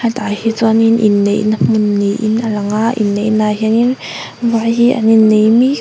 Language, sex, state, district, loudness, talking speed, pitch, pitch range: Mizo, female, Mizoram, Aizawl, -13 LUFS, 175 wpm, 220 Hz, 210-230 Hz